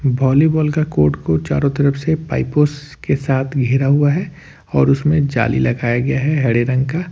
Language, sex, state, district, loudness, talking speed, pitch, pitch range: Hindi, male, Jharkhand, Ranchi, -16 LUFS, 195 wpm, 140 Hz, 125-150 Hz